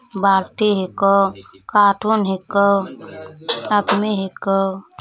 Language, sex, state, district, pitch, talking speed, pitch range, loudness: Hindi, female, Bihar, Begusarai, 200 Hz, 70 wpm, 195-210 Hz, -18 LUFS